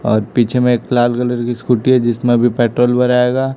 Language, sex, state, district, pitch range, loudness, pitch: Hindi, male, Chhattisgarh, Raipur, 120-125 Hz, -14 LUFS, 120 Hz